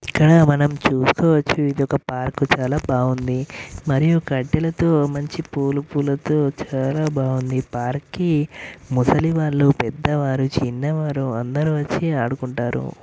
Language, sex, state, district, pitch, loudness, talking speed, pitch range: Telugu, male, Telangana, Karimnagar, 140 Hz, -20 LUFS, 120 wpm, 130-155 Hz